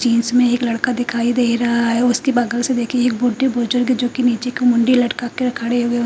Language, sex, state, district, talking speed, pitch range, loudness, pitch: Hindi, female, Punjab, Fazilka, 235 wpm, 235-250 Hz, -17 LUFS, 245 Hz